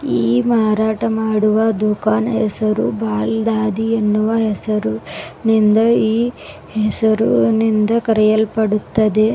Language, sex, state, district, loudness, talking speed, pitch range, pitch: Kannada, female, Karnataka, Bidar, -16 LUFS, 90 wpm, 215-225 Hz, 220 Hz